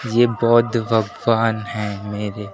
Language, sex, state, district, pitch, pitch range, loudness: Hindi, male, Uttar Pradesh, Lucknow, 115 Hz, 105-115 Hz, -19 LUFS